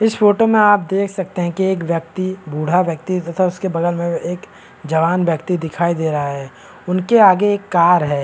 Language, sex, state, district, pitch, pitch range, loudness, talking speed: Hindi, male, Bihar, Kishanganj, 180 Hz, 165-190 Hz, -17 LUFS, 195 wpm